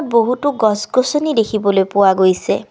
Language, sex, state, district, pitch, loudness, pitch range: Assamese, female, Assam, Kamrup Metropolitan, 215 Hz, -15 LUFS, 200-255 Hz